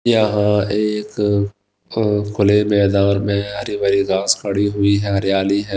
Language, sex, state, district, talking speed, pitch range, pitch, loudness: Hindi, male, Himachal Pradesh, Shimla, 145 wpm, 100-105 Hz, 100 Hz, -17 LUFS